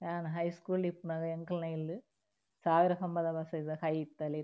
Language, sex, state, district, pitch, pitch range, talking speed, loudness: Tulu, female, Karnataka, Dakshina Kannada, 165 Hz, 160-175 Hz, 150 wpm, -35 LUFS